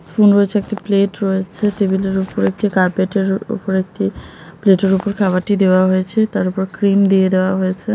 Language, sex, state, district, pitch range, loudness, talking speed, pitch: Bengali, male, West Bengal, Jhargram, 185-200 Hz, -16 LUFS, 180 wpm, 195 Hz